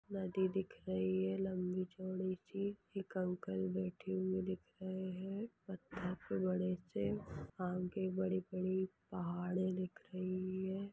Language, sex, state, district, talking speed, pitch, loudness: Hindi, female, Chhattisgarh, Rajnandgaon, 135 wpm, 185 Hz, -41 LUFS